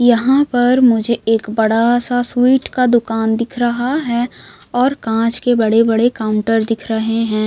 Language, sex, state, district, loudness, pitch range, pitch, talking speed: Hindi, female, Bihar, West Champaran, -15 LUFS, 225-245 Hz, 235 Hz, 160 wpm